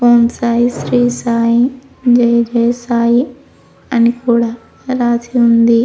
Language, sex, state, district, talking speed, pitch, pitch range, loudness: Telugu, female, Andhra Pradesh, Krishna, 115 wpm, 235 Hz, 235-245 Hz, -13 LUFS